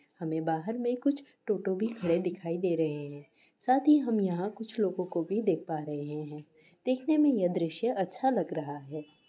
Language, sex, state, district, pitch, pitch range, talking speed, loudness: Hindi, female, West Bengal, North 24 Parganas, 180 Hz, 160-230 Hz, 205 wpm, -31 LUFS